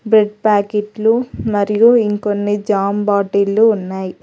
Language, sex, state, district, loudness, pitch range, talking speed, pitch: Telugu, female, Telangana, Hyderabad, -15 LUFS, 200-215 Hz, 100 wpm, 210 Hz